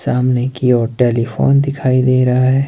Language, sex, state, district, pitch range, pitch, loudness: Hindi, male, Himachal Pradesh, Shimla, 125-130 Hz, 125 Hz, -14 LUFS